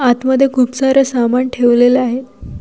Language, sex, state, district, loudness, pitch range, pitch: Marathi, female, Maharashtra, Washim, -13 LUFS, 245-260 Hz, 255 Hz